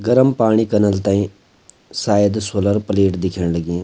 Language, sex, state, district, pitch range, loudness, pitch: Garhwali, male, Uttarakhand, Uttarkashi, 95-105 Hz, -17 LUFS, 100 Hz